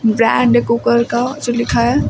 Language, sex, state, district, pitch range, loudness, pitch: Hindi, female, Uttar Pradesh, Lucknow, 235-240 Hz, -14 LUFS, 235 Hz